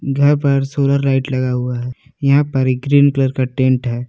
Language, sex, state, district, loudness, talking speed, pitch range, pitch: Hindi, male, Jharkhand, Palamu, -16 LUFS, 220 wpm, 130-140 Hz, 135 Hz